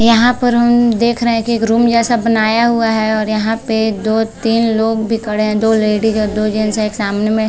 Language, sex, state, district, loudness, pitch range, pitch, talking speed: Hindi, female, Chhattisgarh, Balrampur, -14 LUFS, 215-230 Hz, 225 Hz, 250 wpm